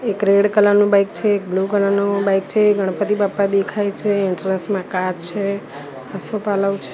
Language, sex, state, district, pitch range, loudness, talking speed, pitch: Gujarati, female, Gujarat, Gandhinagar, 195-205 Hz, -18 LUFS, 190 wpm, 200 Hz